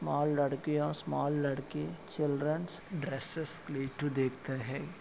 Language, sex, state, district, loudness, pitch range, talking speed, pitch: Hindi, male, Maharashtra, Solapur, -35 LUFS, 135-155 Hz, 95 wpm, 145 Hz